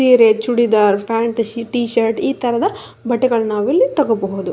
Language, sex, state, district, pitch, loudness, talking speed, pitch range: Kannada, female, Karnataka, Raichur, 230 Hz, -16 LUFS, 145 wpm, 220-240 Hz